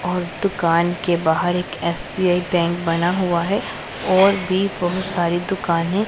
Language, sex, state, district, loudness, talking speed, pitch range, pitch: Hindi, female, Punjab, Pathankot, -19 LUFS, 150 wpm, 170-190 Hz, 175 Hz